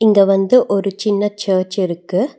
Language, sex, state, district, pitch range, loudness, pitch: Tamil, female, Tamil Nadu, Nilgiris, 190-210 Hz, -16 LUFS, 200 Hz